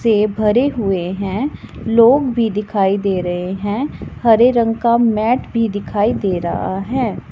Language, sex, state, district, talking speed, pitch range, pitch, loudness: Hindi, female, Punjab, Pathankot, 155 wpm, 195-235 Hz, 220 Hz, -16 LUFS